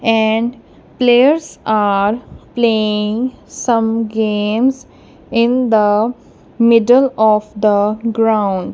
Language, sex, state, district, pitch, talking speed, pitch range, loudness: English, female, Punjab, Kapurthala, 225 Hz, 80 wpm, 215-240 Hz, -14 LUFS